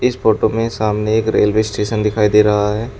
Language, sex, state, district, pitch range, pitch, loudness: Hindi, male, Uttar Pradesh, Shamli, 105-110 Hz, 110 Hz, -15 LUFS